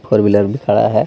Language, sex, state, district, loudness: Hindi, male, Jharkhand, Deoghar, -14 LUFS